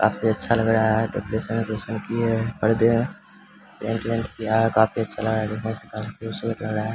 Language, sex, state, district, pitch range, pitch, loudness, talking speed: Hindi, male, Bihar, Samastipur, 110-115 Hz, 110 Hz, -23 LUFS, 235 wpm